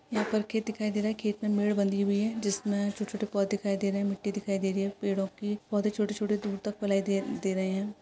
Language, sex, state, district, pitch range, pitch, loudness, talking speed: Hindi, female, Maharashtra, Solapur, 200-210 Hz, 205 Hz, -30 LUFS, 285 wpm